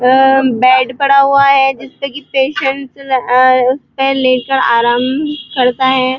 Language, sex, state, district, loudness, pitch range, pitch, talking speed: Hindi, female, Uttar Pradesh, Muzaffarnagar, -12 LUFS, 255-275 Hz, 265 Hz, 145 wpm